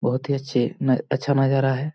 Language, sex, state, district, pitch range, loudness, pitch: Hindi, male, Jharkhand, Jamtara, 130-140 Hz, -22 LUFS, 135 Hz